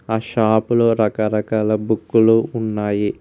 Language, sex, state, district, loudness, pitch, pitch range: Telugu, male, Telangana, Mahabubabad, -18 LUFS, 110 Hz, 105-115 Hz